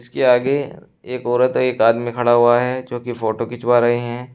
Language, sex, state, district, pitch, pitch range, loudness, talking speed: Hindi, male, Uttar Pradesh, Shamli, 120 Hz, 120-125 Hz, -18 LUFS, 205 wpm